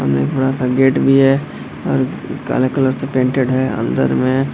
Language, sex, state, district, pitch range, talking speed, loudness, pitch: Hindi, male, Bihar, Darbhanga, 130-135 Hz, 185 wpm, -16 LUFS, 130 Hz